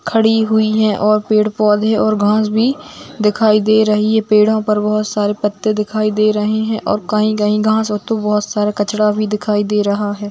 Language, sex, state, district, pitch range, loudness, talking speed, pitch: Hindi, female, Bihar, Saharsa, 210-215 Hz, -15 LUFS, 200 wpm, 215 Hz